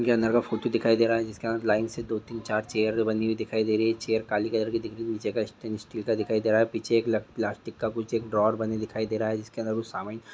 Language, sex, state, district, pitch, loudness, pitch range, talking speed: Hindi, male, Andhra Pradesh, Visakhapatnam, 110 Hz, -28 LUFS, 110-115 Hz, 300 wpm